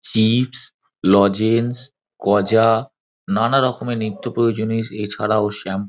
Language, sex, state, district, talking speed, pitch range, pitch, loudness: Bengali, male, West Bengal, Dakshin Dinajpur, 90 wpm, 105-120 Hz, 110 Hz, -19 LUFS